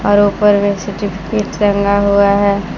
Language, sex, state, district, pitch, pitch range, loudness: Hindi, female, Jharkhand, Palamu, 200 Hz, 200-205 Hz, -13 LUFS